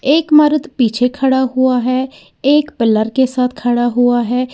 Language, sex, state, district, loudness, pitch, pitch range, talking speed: Hindi, female, Uttar Pradesh, Lalitpur, -14 LUFS, 255 Hz, 245-270 Hz, 170 wpm